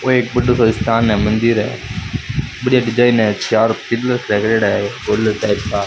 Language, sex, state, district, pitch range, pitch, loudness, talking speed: Rajasthani, male, Rajasthan, Churu, 105-120 Hz, 115 Hz, -16 LUFS, 125 wpm